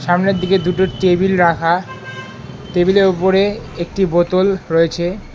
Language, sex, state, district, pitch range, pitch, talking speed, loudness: Bengali, male, West Bengal, Alipurduar, 165-190 Hz, 180 Hz, 110 wpm, -15 LUFS